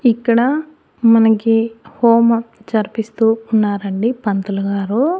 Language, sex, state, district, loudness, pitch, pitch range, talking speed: Telugu, female, Andhra Pradesh, Annamaya, -16 LUFS, 225 Hz, 215-235 Hz, 70 wpm